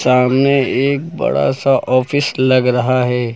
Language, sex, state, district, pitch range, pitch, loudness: Hindi, male, Uttar Pradesh, Lucknow, 125-140 Hz, 130 Hz, -15 LUFS